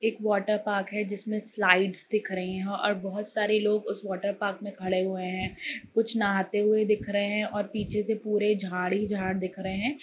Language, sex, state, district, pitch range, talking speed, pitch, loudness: Hindi, female, Bihar, Sitamarhi, 190-210 Hz, 205 wpm, 205 Hz, -28 LUFS